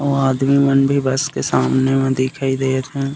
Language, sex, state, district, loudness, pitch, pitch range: Chhattisgarhi, male, Chhattisgarh, Raigarh, -17 LUFS, 135 Hz, 130-140 Hz